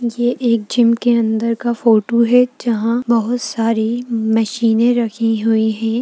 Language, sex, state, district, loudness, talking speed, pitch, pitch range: Hindi, female, Bihar, Gaya, -16 LUFS, 170 wpm, 230 Hz, 225-240 Hz